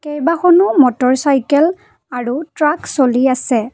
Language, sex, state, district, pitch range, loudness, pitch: Assamese, female, Assam, Kamrup Metropolitan, 255-330 Hz, -14 LUFS, 285 Hz